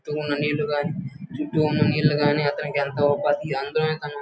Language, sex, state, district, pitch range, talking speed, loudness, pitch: Telugu, male, Andhra Pradesh, Guntur, 145-150 Hz, 140 wpm, -23 LUFS, 150 Hz